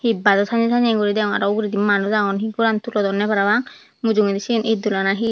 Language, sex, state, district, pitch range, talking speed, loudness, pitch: Chakma, female, Tripura, Dhalai, 200-225 Hz, 205 wpm, -19 LUFS, 210 Hz